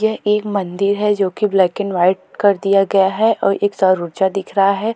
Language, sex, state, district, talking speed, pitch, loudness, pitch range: Hindi, female, Uttarakhand, Tehri Garhwal, 230 wpm, 195 Hz, -16 LUFS, 190-205 Hz